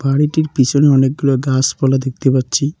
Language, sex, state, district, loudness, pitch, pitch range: Bengali, male, West Bengal, Cooch Behar, -15 LUFS, 135 Hz, 130-145 Hz